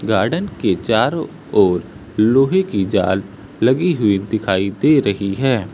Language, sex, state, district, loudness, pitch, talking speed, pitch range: Hindi, male, Uttar Pradesh, Lucknow, -17 LUFS, 105 Hz, 135 wpm, 100-130 Hz